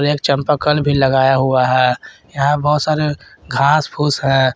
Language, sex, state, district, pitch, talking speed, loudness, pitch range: Hindi, male, Jharkhand, Garhwa, 140 Hz, 170 wpm, -15 LUFS, 130-150 Hz